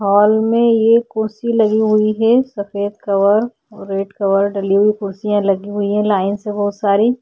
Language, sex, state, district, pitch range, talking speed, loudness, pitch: Hindi, female, Uttarakhand, Tehri Garhwal, 200-220 Hz, 185 wpm, -16 LUFS, 210 Hz